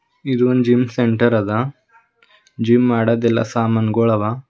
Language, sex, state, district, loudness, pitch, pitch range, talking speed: Kannada, male, Karnataka, Bidar, -17 LUFS, 120 Hz, 115-125 Hz, 120 wpm